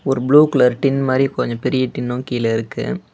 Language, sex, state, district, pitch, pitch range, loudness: Tamil, male, Tamil Nadu, Namakkal, 125 Hz, 120-135 Hz, -17 LUFS